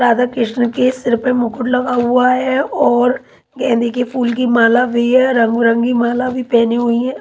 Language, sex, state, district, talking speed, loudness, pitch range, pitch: Hindi, female, Haryana, Charkhi Dadri, 190 wpm, -14 LUFS, 235-250 Hz, 245 Hz